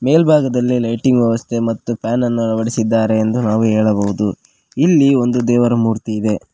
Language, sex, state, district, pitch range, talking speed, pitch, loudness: Kannada, male, Karnataka, Koppal, 110-125 Hz, 130 wpm, 115 Hz, -15 LUFS